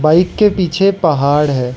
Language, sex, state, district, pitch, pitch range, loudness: Hindi, male, Arunachal Pradesh, Lower Dibang Valley, 160 Hz, 145-190 Hz, -13 LUFS